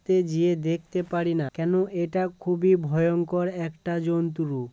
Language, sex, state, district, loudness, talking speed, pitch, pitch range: Bengali, male, West Bengal, Kolkata, -25 LUFS, 150 wpm, 170 Hz, 165-180 Hz